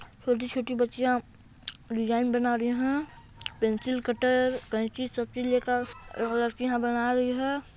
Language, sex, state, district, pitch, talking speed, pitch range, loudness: Hindi, female, Chhattisgarh, Balrampur, 245 Hz, 130 wpm, 235-255 Hz, -29 LUFS